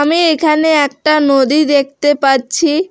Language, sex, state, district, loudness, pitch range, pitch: Bengali, female, West Bengal, Alipurduar, -12 LUFS, 280-315 Hz, 295 Hz